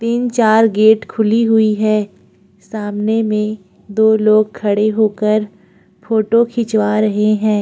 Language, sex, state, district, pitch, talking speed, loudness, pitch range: Hindi, female, Uttarakhand, Tehri Garhwal, 215 Hz, 120 wpm, -14 LUFS, 210-220 Hz